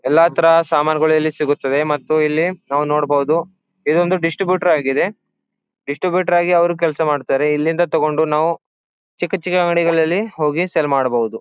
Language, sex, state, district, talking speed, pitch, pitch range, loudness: Kannada, male, Karnataka, Bijapur, 145 wpm, 160 Hz, 150-175 Hz, -17 LUFS